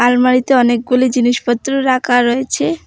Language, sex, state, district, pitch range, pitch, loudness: Bengali, female, West Bengal, Alipurduar, 240-255 Hz, 245 Hz, -14 LUFS